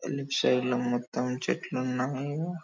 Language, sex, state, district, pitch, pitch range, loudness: Telugu, male, Telangana, Karimnagar, 125 Hz, 125-140 Hz, -30 LUFS